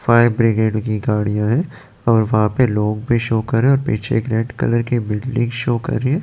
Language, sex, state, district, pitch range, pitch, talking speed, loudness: Hindi, male, Chandigarh, Chandigarh, 110-120 Hz, 115 Hz, 220 wpm, -18 LUFS